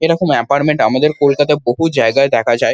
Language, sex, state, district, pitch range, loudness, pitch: Bengali, male, West Bengal, Kolkata, 140-155 Hz, -13 LUFS, 145 Hz